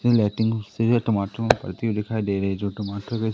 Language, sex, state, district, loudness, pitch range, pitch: Hindi, male, Madhya Pradesh, Katni, -24 LUFS, 100-115 Hz, 110 Hz